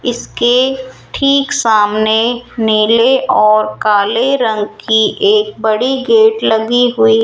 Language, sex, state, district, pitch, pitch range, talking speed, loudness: Hindi, female, Rajasthan, Jaipur, 235 Hz, 220-265 Hz, 115 wpm, -12 LUFS